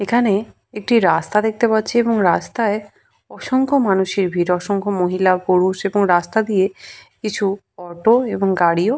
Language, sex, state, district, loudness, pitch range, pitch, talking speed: Bengali, female, West Bengal, Purulia, -18 LUFS, 185-220 Hz, 200 Hz, 135 wpm